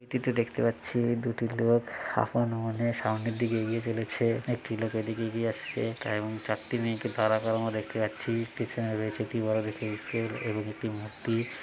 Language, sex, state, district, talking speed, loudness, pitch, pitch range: Bengali, male, West Bengal, Malda, 170 wpm, -31 LUFS, 115 Hz, 110-120 Hz